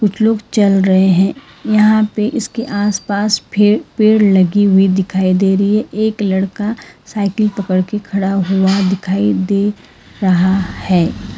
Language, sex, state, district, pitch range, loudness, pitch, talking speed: Hindi, female, Karnataka, Bangalore, 190-210 Hz, -14 LUFS, 200 Hz, 140 wpm